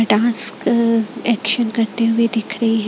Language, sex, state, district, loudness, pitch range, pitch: Hindi, female, Chhattisgarh, Raipur, -17 LUFS, 225-235 Hz, 230 Hz